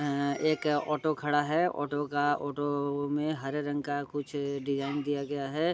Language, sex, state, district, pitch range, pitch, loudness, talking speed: Hindi, male, Bihar, Sitamarhi, 140-150 Hz, 145 Hz, -31 LUFS, 190 wpm